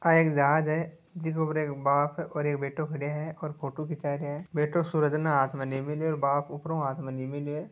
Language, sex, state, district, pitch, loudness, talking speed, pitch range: Marwari, male, Rajasthan, Nagaur, 150 Hz, -29 LUFS, 185 wpm, 145-160 Hz